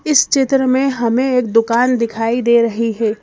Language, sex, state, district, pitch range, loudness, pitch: Hindi, female, Madhya Pradesh, Bhopal, 230-260 Hz, -15 LUFS, 235 Hz